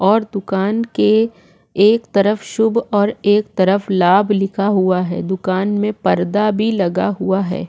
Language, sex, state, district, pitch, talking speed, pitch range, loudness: Hindi, female, Chhattisgarh, Korba, 200 Hz, 155 wpm, 190-215 Hz, -16 LUFS